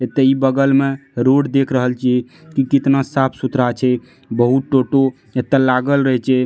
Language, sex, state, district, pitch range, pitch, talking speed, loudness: Maithili, male, Bihar, Madhepura, 125-135 Hz, 135 Hz, 175 wpm, -16 LUFS